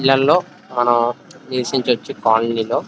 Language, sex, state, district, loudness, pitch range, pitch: Telugu, male, Andhra Pradesh, Krishna, -18 LUFS, 120-130 Hz, 120 Hz